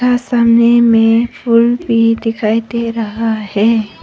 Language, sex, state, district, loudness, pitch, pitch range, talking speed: Hindi, female, Arunachal Pradesh, Papum Pare, -12 LUFS, 230 Hz, 225-235 Hz, 120 wpm